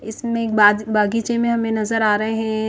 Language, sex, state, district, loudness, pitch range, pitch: Hindi, female, Chandigarh, Chandigarh, -18 LUFS, 215-230 Hz, 220 Hz